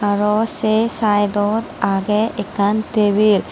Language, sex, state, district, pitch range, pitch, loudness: Chakma, female, Tripura, West Tripura, 205-220 Hz, 210 Hz, -17 LUFS